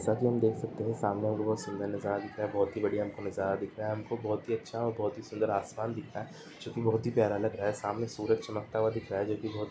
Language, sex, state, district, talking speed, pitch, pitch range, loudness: Hindi, male, Chhattisgarh, Korba, 330 wpm, 110 Hz, 105-110 Hz, -33 LUFS